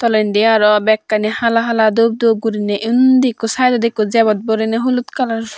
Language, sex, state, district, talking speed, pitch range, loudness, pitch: Chakma, female, Tripura, Dhalai, 185 wpm, 215-235 Hz, -14 LUFS, 225 Hz